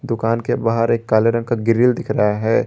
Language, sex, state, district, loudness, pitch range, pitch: Hindi, male, Jharkhand, Garhwa, -18 LUFS, 115-120 Hz, 115 Hz